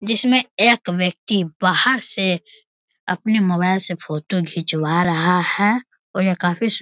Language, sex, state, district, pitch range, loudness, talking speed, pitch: Hindi, male, Bihar, Bhagalpur, 175-220 Hz, -18 LUFS, 105 wpm, 185 Hz